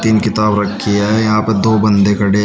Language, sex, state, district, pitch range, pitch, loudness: Hindi, male, Uttar Pradesh, Shamli, 105-110 Hz, 105 Hz, -13 LUFS